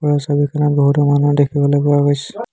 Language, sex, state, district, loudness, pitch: Assamese, male, Assam, Hailakandi, -15 LUFS, 145 Hz